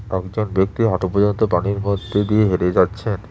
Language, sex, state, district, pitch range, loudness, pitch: Bengali, male, West Bengal, Cooch Behar, 95-105 Hz, -19 LUFS, 100 Hz